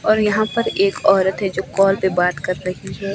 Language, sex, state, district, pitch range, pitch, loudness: Hindi, female, Himachal Pradesh, Shimla, 190-205 Hz, 195 Hz, -18 LUFS